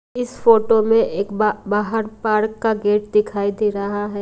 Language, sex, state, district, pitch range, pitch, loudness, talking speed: Hindi, female, Punjab, Kapurthala, 205-220 Hz, 215 Hz, -19 LUFS, 170 wpm